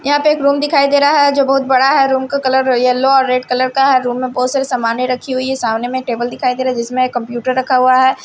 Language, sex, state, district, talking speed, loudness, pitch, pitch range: Hindi, female, Punjab, Kapurthala, 290 wpm, -14 LUFS, 260 Hz, 250-270 Hz